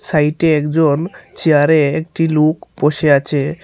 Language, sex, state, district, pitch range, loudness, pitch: Bengali, male, Tripura, Unakoti, 150-165 Hz, -15 LUFS, 155 Hz